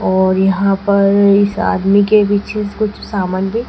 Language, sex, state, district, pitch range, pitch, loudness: Hindi, female, Madhya Pradesh, Dhar, 195-210 Hz, 200 Hz, -14 LUFS